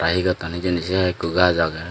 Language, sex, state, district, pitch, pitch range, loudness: Chakma, male, Tripura, Dhalai, 90 Hz, 85-90 Hz, -21 LUFS